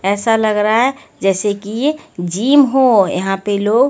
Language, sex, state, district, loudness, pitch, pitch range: Hindi, female, Haryana, Rohtak, -15 LUFS, 215 Hz, 200-260 Hz